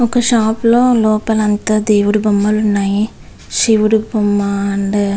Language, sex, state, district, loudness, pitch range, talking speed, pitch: Telugu, female, Andhra Pradesh, Visakhapatnam, -14 LUFS, 205-220 Hz, 115 wpm, 215 Hz